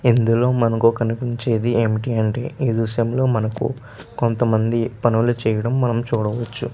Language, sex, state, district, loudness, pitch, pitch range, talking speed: Telugu, male, Andhra Pradesh, Chittoor, -20 LUFS, 115 Hz, 115-120 Hz, 135 wpm